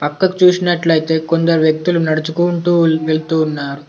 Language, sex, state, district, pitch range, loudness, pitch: Telugu, male, Telangana, Komaram Bheem, 155-175 Hz, -15 LUFS, 160 Hz